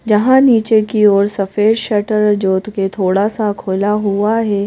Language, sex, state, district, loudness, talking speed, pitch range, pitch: Hindi, female, Madhya Pradesh, Bhopal, -14 LUFS, 165 wpm, 200-220 Hz, 210 Hz